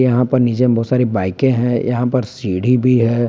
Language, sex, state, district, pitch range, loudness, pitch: Hindi, male, Jharkhand, Palamu, 115-125 Hz, -16 LUFS, 125 Hz